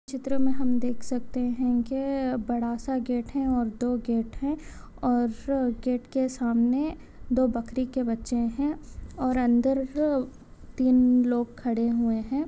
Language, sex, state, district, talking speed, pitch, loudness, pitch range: Hindi, female, West Bengal, Dakshin Dinajpur, 145 wpm, 250 Hz, -27 LUFS, 240-265 Hz